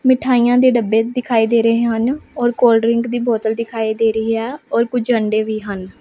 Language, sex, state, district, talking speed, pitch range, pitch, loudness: Punjabi, female, Punjab, Pathankot, 210 wpm, 225-245 Hz, 230 Hz, -16 LUFS